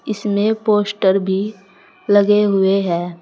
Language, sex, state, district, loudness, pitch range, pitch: Hindi, female, Uttar Pradesh, Saharanpur, -16 LUFS, 190-210 Hz, 205 Hz